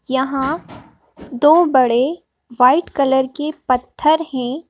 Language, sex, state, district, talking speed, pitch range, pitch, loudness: Hindi, female, Madhya Pradesh, Bhopal, 100 wpm, 255-305 Hz, 270 Hz, -16 LUFS